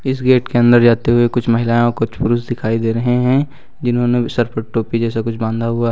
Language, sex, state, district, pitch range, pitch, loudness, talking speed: Hindi, male, Uttar Pradesh, Lucknow, 115-120 Hz, 120 Hz, -16 LUFS, 255 wpm